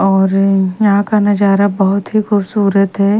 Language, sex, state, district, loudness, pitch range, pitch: Hindi, female, Bihar, Kaimur, -13 LUFS, 195-205 Hz, 200 Hz